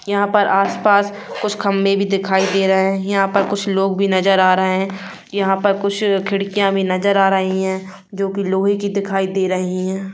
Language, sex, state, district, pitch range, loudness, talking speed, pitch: Hindi, female, Bihar, Sitamarhi, 190-200 Hz, -17 LUFS, 220 wpm, 195 Hz